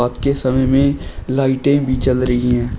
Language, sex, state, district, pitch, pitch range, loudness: Hindi, male, Uttar Pradesh, Shamli, 130 Hz, 120-135 Hz, -16 LUFS